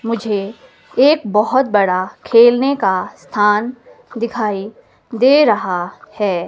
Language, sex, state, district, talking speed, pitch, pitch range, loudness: Hindi, female, Himachal Pradesh, Shimla, 100 wpm, 215 Hz, 200-240 Hz, -15 LUFS